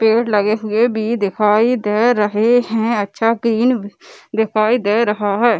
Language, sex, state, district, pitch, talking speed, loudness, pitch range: Hindi, female, Bihar, Gaya, 220 Hz, 150 wpm, -16 LUFS, 210-235 Hz